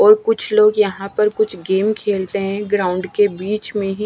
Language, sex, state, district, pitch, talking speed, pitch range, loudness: Hindi, female, Odisha, Malkangiri, 205 Hz, 205 wpm, 195-215 Hz, -17 LUFS